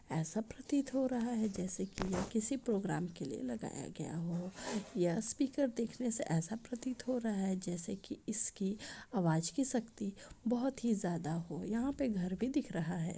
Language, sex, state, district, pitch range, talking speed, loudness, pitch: Hindi, female, Chhattisgarh, Raigarh, 180-245 Hz, 185 wpm, -38 LUFS, 220 Hz